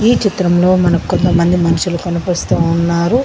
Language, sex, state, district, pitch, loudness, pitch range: Telugu, female, Telangana, Mahabubabad, 175 Hz, -13 LUFS, 170-180 Hz